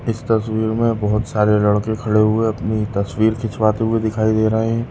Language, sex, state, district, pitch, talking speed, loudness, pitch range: Hindi, female, Goa, North and South Goa, 110 Hz, 195 wpm, -18 LUFS, 105-110 Hz